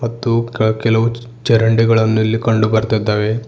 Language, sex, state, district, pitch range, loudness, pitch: Kannada, male, Karnataka, Bidar, 110-115 Hz, -15 LUFS, 115 Hz